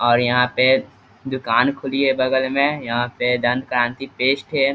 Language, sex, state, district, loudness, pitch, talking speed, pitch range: Hindi, male, Bihar, East Champaran, -19 LUFS, 130 Hz, 165 wpm, 120-135 Hz